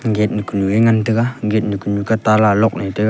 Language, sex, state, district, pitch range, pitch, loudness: Wancho, male, Arunachal Pradesh, Longding, 100-110 Hz, 110 Hz, -16 LUFS